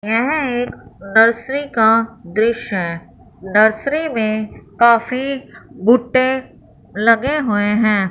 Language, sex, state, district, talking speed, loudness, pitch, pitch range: Hindi, female, Punjab, Fazilka, 95 wpm, -16 LUFS, 230 Hz, 210-255 Hz